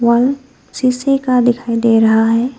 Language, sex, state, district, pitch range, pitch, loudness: Hindi, female, West Bengal, Alipurduar, 230-255 Hz, 245 Hz, -14 LUFS